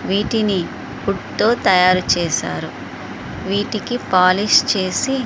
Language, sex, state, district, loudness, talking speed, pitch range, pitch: Telugu, female, Andhra Pradesh, Srikakulam, -17 LUFS, 105 wpm, 185-225 Hz, 205 Hz